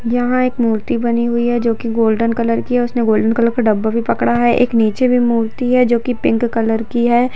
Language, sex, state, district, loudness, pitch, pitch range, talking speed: Hindi, female, Jharkhand, Jamtara, -15 LUFS, 235 Hz, 230-245 Hz, 250 wpm